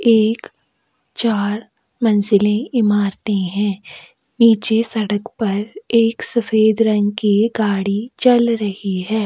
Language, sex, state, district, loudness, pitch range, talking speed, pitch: Hindi, female, Maharashtra, Aurangabad, -16 LUFS, 205-230 Hz, 105 wpm, 215 Hz